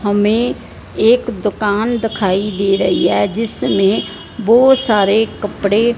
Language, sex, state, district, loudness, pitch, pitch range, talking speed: Hindi, female, Punjab, Fazilka, -15 LUFS, 210 Hz, 200-230 Hz, 110 wpm